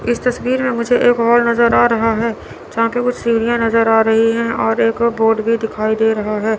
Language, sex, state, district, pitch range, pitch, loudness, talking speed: Hindi, female, Chandigarh, Chandigarh, 225-235 Hz, 230 Hz, -15 LUFS, 235 wpm